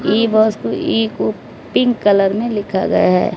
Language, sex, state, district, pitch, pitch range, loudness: Hindi, female, Odisha, Malkangiri, 210 Hz, 195-225 Hz, -16 LUFS